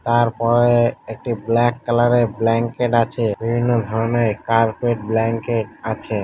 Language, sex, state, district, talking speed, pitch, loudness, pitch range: Bengali, male, West Bengal, Malda, 125 wpm, 115 Hz, -19 LUFS, 115-120 Hz